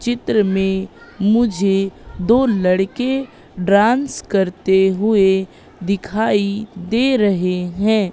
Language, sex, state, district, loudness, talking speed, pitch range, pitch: Hindi, female, Madhya Pradesh, Katni, -17 LUFS, 90 wpm, 190-220 Hz, 200 Hz